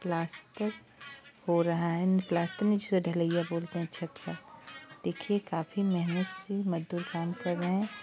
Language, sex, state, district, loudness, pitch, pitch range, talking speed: Hindi, male, Bihar, East Champaran, -32 LUFS, 175 Hz, 170-200 Hz, 150 wpm